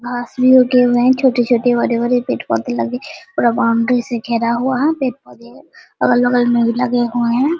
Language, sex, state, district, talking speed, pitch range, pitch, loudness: Hindi, female, Bihar, Saharsa, 175 wpm, 235-250 Hz, 245 Hz, -15 LUFS